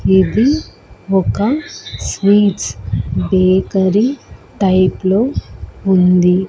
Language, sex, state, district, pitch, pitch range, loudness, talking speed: Telugu, female, Andhra Pradesh, Annamaya, 190 Hz, 185-210 Hz, -14 LUFS, 65 wpm